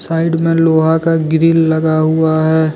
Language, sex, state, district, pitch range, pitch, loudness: Hindi, male, Jharkhand, Deoghar, 160-165 Hz, 160 Hz, -12 LUFS